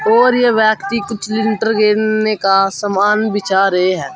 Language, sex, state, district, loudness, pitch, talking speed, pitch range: Hindi, male, Uttar Pradesh, Saharanpur, -14 LUFS, 210 Hz, 160 wpm, 195-220 Hz